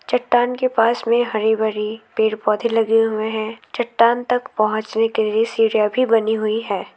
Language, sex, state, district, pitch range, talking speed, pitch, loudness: Hindi, female, West Bengal, Alipurduar, 215-235 Hz, 180 wpm, 225 Hz, -19 LUFS